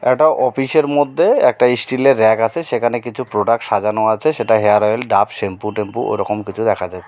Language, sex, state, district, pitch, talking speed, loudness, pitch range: Bengali, male, West Bengal, Cooch Behar, 115 Hz, 185 wpm, -16 LUFS, 105-130 Hz